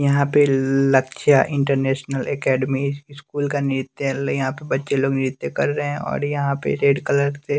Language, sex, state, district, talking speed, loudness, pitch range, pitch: Hindi, male, Bihar, West Champaran, 180 wpm, -20 LUFS, 135-145 Hz, 140 Hz